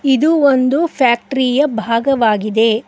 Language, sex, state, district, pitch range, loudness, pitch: Kannada, female, Karnataka, Koppal, 230-280 Hz, -14 LUFS, 260 Hz